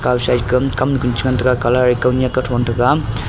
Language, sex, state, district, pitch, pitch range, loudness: Wancho, male, Arunachal Pradesh, Longding, 125 Hz, 120-130 Hz, -16 LUFS